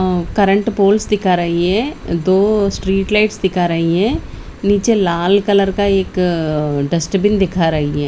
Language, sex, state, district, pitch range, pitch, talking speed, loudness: Hindi, female, Chandigarh, Chandigarh, 170-205 Hz, 195 Hz, 155 wpm, -15 LUFS